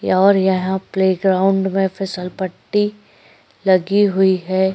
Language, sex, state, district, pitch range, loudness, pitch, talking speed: Hindi, female, Uttar Pradesh, Jyotiba Phule Nagar, 185-195 Hz, -17 LUFS, 190 Hz, 125 wpm